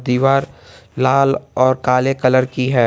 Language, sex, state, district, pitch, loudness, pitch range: Hindi, male, Jharkhand, Garhwa, 130 Hz, -16 LUFS, 125-135 Hz